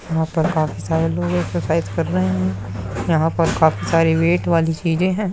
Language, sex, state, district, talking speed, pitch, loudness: Hindi, female, Uttar Pradesh, Muzaffarnagar, 190 wpm, 160 Hz, -19 LUFS